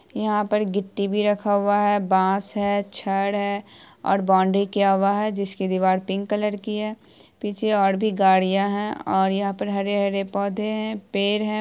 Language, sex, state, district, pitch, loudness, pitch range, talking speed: Hindi, female, Bihar, Saharsa, 200 Hz, -22 LUFS, 195-210 Hz, 180 wpm